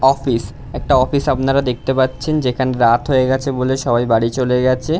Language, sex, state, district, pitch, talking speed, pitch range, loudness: Bengali, male, West Bengal, Dakshin Dinajpur, 130 Hz, 180 wpm, 125-135 Hz, -16 LUFS